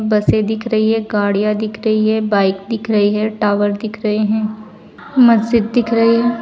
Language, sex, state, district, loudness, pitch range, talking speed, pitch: Hindi, female, Uttar Pradesh, Saharanpur, -15 LUFS, 210-225 Hz, 185 wpm, 215 Hz